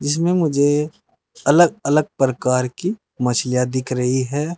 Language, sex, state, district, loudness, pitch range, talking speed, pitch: Hindi, male, Uttar Pradesh, Saharanpur, -19 LUFS, 125-155 Hz, 130 wpm, 145 Hz